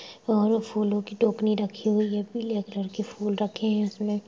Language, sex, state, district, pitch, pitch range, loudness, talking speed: Hindi, female, Chhattisgarh, Rajnandgaon, 210 Hz, 205-220 Hz, -27 LUFS, 195 wpm